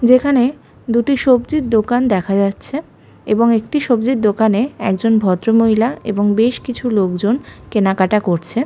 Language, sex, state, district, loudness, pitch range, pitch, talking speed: Bengali, female, West Bengal, Malda, -16 LUFS, 210-250 Hz, 225 Hz, 125 wpm